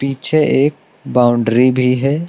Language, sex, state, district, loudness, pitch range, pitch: Hindi, male, Uttar Pradesh, Lucknow, -14 LUFS, 125-150 Hz, 135 Hz